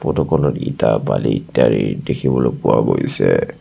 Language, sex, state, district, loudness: Assamese, male, Assam, Sonitpur, -17 LUFS